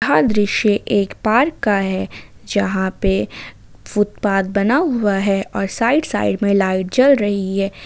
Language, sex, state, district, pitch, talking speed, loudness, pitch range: Hindi, female, Jharkhand, Ranchi, 200 Hz, 155 wpm, -17 LUFS, 195-215 Hz